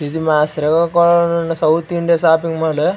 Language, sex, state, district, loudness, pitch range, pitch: Telugu, male, Andhra Pradesh, Srikakulam, -15 LUFS, 155-170 Hz, 165 Hz